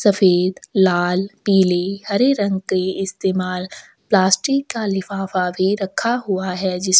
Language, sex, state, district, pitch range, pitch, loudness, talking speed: Hindi, female, Chhattisgarh, Sukma, 185-200 Hz, 190 Hz, -19 LUFS, 130 wpm